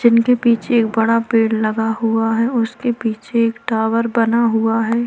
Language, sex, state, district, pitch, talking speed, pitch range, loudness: Hindi, female, Maharashtra, Chandrapur, 230 Hz, 190 wpm, 225-235 Hz, -17 LUFS